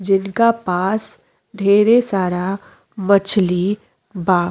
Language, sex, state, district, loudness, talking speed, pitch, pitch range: Bhojpuri, female, Uttar Pradesh, Deoria, -17 LUFS, 80 wpm, 195 Hz, 185-210 Hz